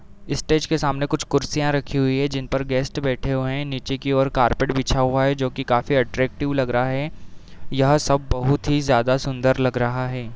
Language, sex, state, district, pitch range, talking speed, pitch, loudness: Hindi, male, Uttar Pradesh, Deoria, 130-140 Hz, 215 wpm, 135 Hz, -21 LUFS